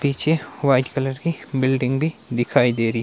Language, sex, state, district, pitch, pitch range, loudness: Hindi, male, Himachal Pradesh, Shimla, 135 Hz, 125-145 Hz, -21 LUFS